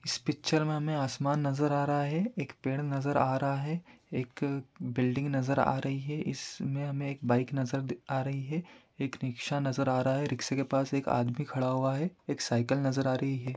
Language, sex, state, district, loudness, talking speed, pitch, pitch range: Hindi, male, Andhra Pradesh, Guntur, -32 LUFS, 240 wpm, 135 Hz, 130-145 Hz